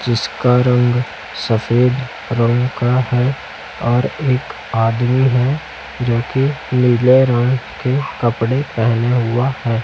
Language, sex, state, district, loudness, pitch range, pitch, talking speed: Hindi, male, Chhattisgarh, Raipur, -16 LUFS, 115-130 Hz, 125 Hz, 110 wpm